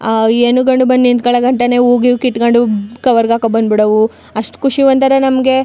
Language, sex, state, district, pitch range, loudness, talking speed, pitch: Kannada, female, Karnataka, Chamarajanagar, 225-255 Hz, -12 LUFS, 180 wpm, 245 Hz